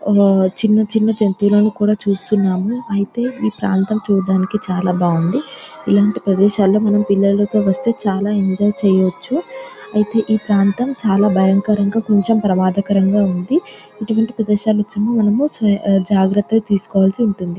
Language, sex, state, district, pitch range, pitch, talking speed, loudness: Telugu, female, Telangana, Nalgonda, 195-215 Hz, 205 Hz, 120 wpm, -16 LUFS